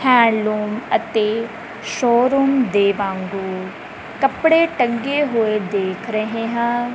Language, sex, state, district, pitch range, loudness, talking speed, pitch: Punjabi, male, Punjab, Kapurthala, 210-245 Hz, -18 LUFS, 105 wpm, 225 Hz